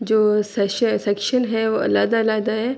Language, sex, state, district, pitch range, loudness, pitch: Urdu, female, Andhra Pradesh, Anantapur, 210-230 Hz, -20 LUFS, 220 Hz